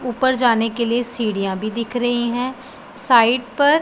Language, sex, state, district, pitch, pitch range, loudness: Hindi, male, Punjab, Pathankot, 240 Hz, 230-250 Hz, -19 LUFS